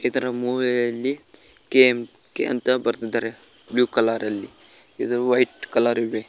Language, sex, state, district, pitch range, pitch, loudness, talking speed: Kannada, male, Karnataka, Koppal, 115-125 Hz, 120 Hz, -22 LUFS, 115 wpm